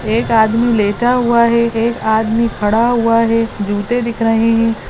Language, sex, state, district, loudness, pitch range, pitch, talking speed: Hindi, female, Goa, North and South Goa, -14 LUFS, 220-235 Hz, 230 Hz, 170 wpm